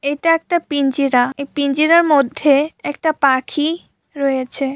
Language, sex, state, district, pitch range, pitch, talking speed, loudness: Bengali, female, West Bengal, Purulia, 275-310 Hz, 285 Hz, 125 wpm, -16 LUFS